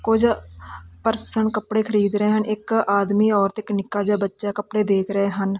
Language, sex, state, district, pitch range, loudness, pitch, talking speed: Punjabi, female, Punjab, Kapurthala, 200-215 Hz, -20 LUFS, 205 Hz, 180 wpm